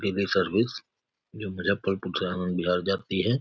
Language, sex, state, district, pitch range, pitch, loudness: Hindi, male, Bihar, Saharsa, 90-100 Hz, 95 Hz, -27 LUFS